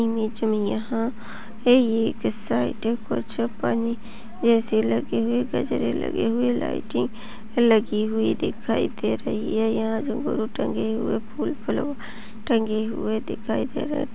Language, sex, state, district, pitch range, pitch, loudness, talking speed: Hindi, female, Chhattisgarh, Raigarh, 220-235 Hz, 225 Hz, -24 LUFS, 130 wpm